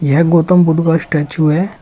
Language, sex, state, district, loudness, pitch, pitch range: Hindi, male, Uttar Pradesh, Shamli, -13 LUFS, 165 Hz, 155-170 Hz